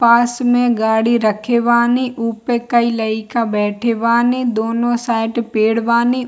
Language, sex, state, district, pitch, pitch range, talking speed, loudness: Hindi, female, Bihar, Kishanganj, 235 Hz, 225-240 Hz, 135 wpm, -16 LUFS